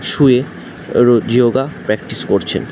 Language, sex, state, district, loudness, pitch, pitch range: Bengali, male, West Bengal, Jhargram, -14 LUFS, 125 Hz, 120-135 Hz